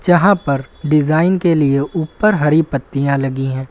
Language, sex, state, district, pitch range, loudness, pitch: Hindi, male, Uttar Pradesh, Lucknow, 140-175 Hz, -15 LUFS, 150 Hz